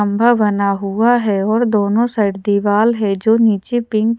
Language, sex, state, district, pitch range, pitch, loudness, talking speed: Hindi, female, Odisha, Sambalpur, 205-230 Hz, 215 Hz, -15 LUFS, 185 wpm